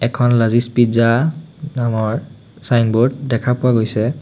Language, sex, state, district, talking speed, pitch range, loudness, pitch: Assamese, male, Assam, Sonitpur, 115 wpm, 115-130 Hz, -16 LUFS, 120 Hz